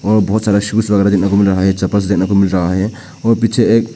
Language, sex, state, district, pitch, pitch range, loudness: Hindi, male, Arunachal Pradesh, Papum Pare, 100 Hz, 95-110 Hz, -14 LUFS